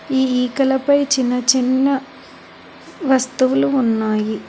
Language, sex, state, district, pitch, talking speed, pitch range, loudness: Telugu, female, Telangana, Hyderabad, 260 Hz, 80 wpm, 250-270 Hz, -17 LUFS